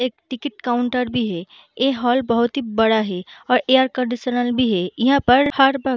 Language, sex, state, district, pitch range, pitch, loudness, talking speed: Hindi, female, Bihar, Darbhanga, 235-260 Hz, 245 Hz, -19 LUFS, 210 wpm